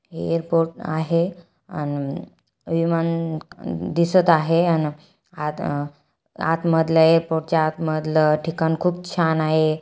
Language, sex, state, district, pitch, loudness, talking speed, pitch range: Marathi, female, Maharashtra, Aurangabad, 165 Hz, -21 LUFS, 120 wpm, 155-170 Hz